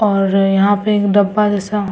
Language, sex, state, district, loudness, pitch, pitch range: Hindi, female, Bihar, Samastipur, -14 LUFS, 205 Hz, 195-210 Hz